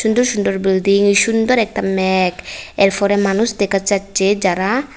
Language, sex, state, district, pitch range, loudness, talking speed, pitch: Bengali, female, Tripura, West Tripura, 195-220 Hz, -15 LUFS, 135 wpm, 200 Hz